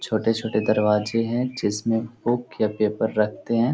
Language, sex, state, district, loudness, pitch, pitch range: Hindi, male, Bihar, Lakhisarai, -23 LUFS, 110 Hz, 105-115 Hz